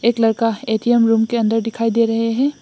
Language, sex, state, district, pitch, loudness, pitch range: Hindi, female, Assam, Hailakandi, 230 Hz, -17 LUFS, 225-235 Hz